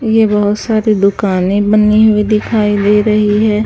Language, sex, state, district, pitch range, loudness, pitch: Hindi, female, Haryana, Charkhi Dadri, 205-215 Hz, -11 LUFS, 210 Hz